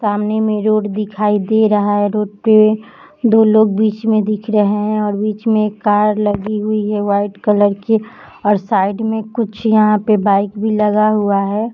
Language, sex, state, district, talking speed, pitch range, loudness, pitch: Hindi, female, Jharkhand, Jamtara, 200 wpm, 205-215 Hz, -15 LUFS, 210 Hz